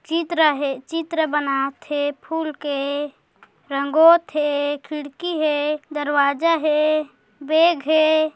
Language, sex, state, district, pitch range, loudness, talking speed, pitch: Hindi, female, Chhattisgarh, Korba, 285-315 Hz, -20 LUFS, 110 wpm, 300 Hz